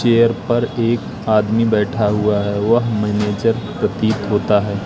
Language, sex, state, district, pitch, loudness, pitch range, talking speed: Hindi, male, Madhya Pradesh, Katni, 110 Hz, -17 LUFS, 105-115 Hz, 150 wpm